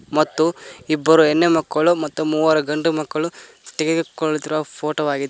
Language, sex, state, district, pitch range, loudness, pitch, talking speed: Kannada, male, Karnataka, Koppal, 155-160 Hz, -19 LUFS, 155 Hz, 125 wpm